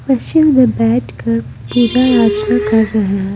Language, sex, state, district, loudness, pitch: Hindi, female, Bihar, Patna, -13 LUFS, 215 Hz